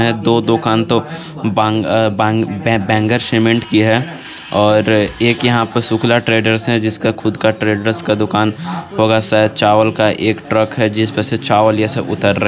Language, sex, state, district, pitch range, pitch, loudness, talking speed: Hindi, male, Jharkhand, Garhwa, 110-115 Hz, 110 Hz, -14 LUFS, 165 wpm